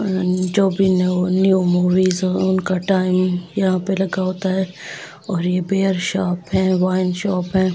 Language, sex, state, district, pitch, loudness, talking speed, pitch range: Hindi, female, Delhi, New Delhi, 185 Hz, -18 LUFS, 130 wpm, 180-190 Hz